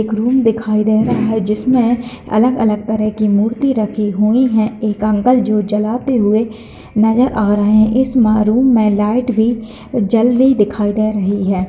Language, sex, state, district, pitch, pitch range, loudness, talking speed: Hindi, female, Bihar, Bhagalpur, 220 Hz, 210-240 Hz, -14 LUFS, 175 wpm